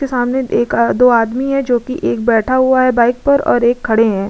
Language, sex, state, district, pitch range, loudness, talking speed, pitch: Hindi, female, Uttar Pradesh, Budaun, 235-260 Hz, -13 LUFS, 225 wpm, 245 Hz